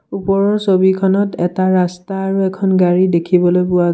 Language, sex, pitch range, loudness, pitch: Assamese, male, 180-195 Hz, -15 LUFS, 190 Hz